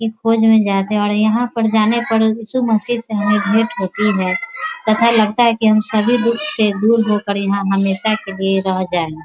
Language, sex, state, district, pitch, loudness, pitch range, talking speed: Hindi, female, Bihar, Muzaffarpur, 215 Hz, -16 LUFS, 200-230 Hz, 220 wpm